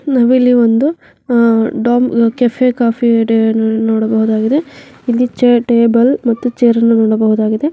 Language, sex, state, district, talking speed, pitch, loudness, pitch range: Kannada, female, Karnataka, Dharwad, 115 wpm, 235 Hz, -12 LUFS, 225-245 Hz